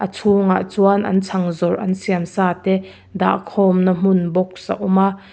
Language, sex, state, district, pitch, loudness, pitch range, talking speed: Mizo, female, Mizoram, Aizawl, 190 Hz, -18 LUFS, 185-195 Hz, 180 wpm